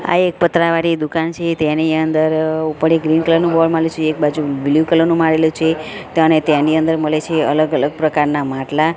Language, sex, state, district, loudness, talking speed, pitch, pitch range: Gujarati, female, Gujarat, Gandhinagar, -15 LUFS, 215 wpm, 160 Hz, 155-165 Hz